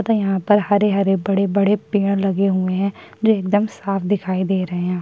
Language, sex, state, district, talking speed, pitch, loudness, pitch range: Hindi, female, Chhattisgarh, Kabirdham, 205 wpm, 195 Hz, -19 LUFS, 190-205 Hz